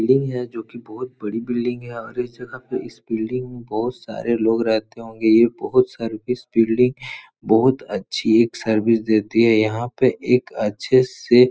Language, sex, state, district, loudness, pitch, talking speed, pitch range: Hindi, male, Uttar Pradesh, Etah, -20 LUFS, 120 Hz, 195 wpm, 110-125 Hz